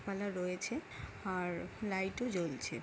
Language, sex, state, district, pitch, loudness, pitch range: Bengali, female, West Bengal, Jhargram, 190 Hz, -39 LUFS, 180-205 Hz